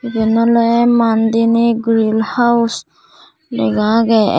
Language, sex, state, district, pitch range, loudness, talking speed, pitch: Chakma, female, Tripura, Dhalai, 220-235 Hz, -13 LUFS, 95 wpm, 230 Hz